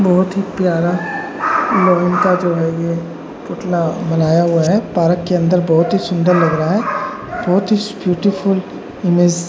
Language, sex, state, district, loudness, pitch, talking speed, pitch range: Hindi, male, Uttar Pradesh, Jalaun, -15 LUFS, 180 Hz, 165 wpm, 170-190 Hz